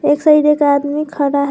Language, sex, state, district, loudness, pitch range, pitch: Hindi, female, Jharkhand, Garhwa, -13 LUFS, 285-300 Hz, 290 Hz